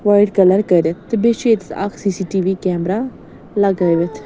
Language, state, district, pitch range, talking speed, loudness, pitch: Kashmiri, Punjab, Kapurthala, 180-205 Hz, 185 wpm, -16 LUFS, 195 Hz